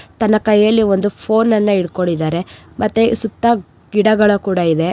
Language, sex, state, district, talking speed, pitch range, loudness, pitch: Kannada, female, Karnataka, Raichur, 135 wpm, 185-220 Hz, -15 LUFS, 210 Hz